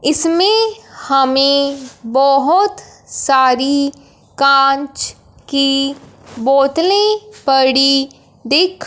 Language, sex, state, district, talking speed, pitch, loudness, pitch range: Hindi, male, Punjab, Fazilka, 60 wpm, 275 Hz, -14 LUFS, 270-330 Hz